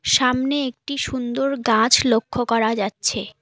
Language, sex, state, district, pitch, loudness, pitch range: Bengali, female, West Bengal, Alipurduar, 245 Hz, -20 LUFS, 220-265 Hz